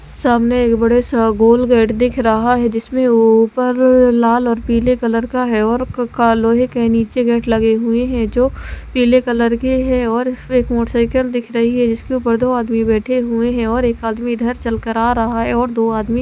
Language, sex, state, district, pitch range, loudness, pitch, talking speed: Hindi, female, Haryana, Rohtak, 230-250 Hz, -15 LUFS, 235 Hz, 210 wpm